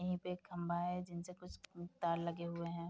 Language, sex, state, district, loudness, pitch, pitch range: Hindi, female, Bihar, Bhagalpur, -43 LUFS, 175 Hz, 170-180 Hz